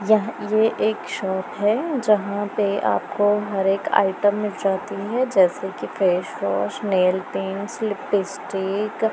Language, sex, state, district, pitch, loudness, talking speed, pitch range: Hindi, female, Punjab, Pathankot, 200 Hz, -22 LUFS, 130 wpm, 190-210 Hz